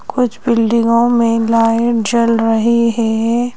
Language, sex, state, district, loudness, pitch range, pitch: Hindi, female, Madhya Pradesh, Bhopal, -13 LUFS, 225-235 Hz, 230 Hz